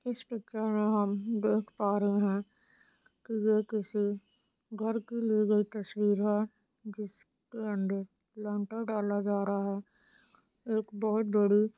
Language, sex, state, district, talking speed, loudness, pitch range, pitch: Hindi, female, Bihar, Darbhanga, 135 wpm, -32 LUFS, 205-220 Hz, 215 Hz